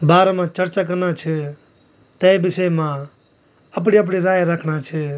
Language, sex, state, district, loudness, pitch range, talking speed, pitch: Garhwali, male, Uttarakhand, Tehri Garhwal, -18 LUFS, 155-185 Hz, 150 wpm, 175 Hz